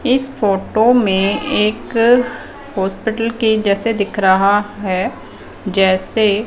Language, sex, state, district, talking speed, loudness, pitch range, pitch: Hindi, female, Punjab, Fazilka, 100 wpm, -15 LUFS, 195-230 Hz, 210 Hz